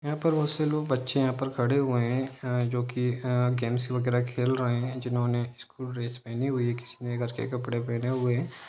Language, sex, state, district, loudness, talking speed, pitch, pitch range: Hindi, male, Jharkhand, Sahebganj, -29 LUFS, 235 wpm, 125 Hz, 120-130 Hz